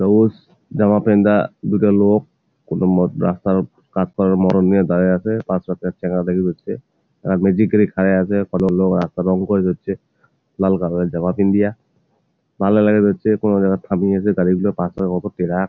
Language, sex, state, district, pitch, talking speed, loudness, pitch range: Bengali, male, West Bengal, Jalpaiguri, 95 Hz, 165 wpm, -17 LUFS, 90-105 Hz